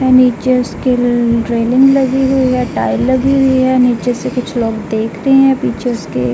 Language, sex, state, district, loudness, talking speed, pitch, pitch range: Hindi, female, Uttar Pradesh, Jalaun, -13 LUFS, 190 wpm, 250 Hz, 235-260 Hz